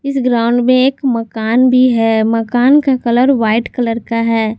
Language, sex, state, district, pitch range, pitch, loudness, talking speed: Hindi, female, Jharkhand, Garhwa, 230-255 Hz, 240 Hz, -13 LUFS, 185 wpm